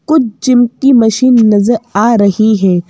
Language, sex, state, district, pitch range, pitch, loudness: Hindi, female, Madhya Pradesh, Bhopal, 210-250 Hz, 230 Hz, -10 LUFS